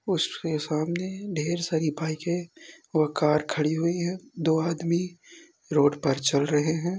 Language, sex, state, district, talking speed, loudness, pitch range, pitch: Hindi, male, Uttar Pradesh, Etah, 145 wpm, -26 LUFS, 155-175 Hz, 165 Hz